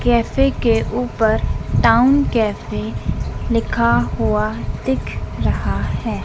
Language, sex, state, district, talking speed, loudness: Hindi, female, Madhya Pradesh, Dhar, 95 wpm, -18 LUFS